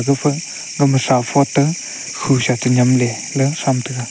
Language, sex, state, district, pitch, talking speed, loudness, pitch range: Wancho, male, Arunachal Pradesh, Longding, 135 Hz, 115 wpm, -17 LUFS, 125-140 Hz